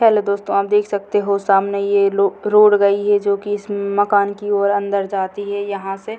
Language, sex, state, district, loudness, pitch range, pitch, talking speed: Hindi, female, Bihar, Purnia, -17 LUFS, 200-205 Hz, 200 Hz, 235 wpm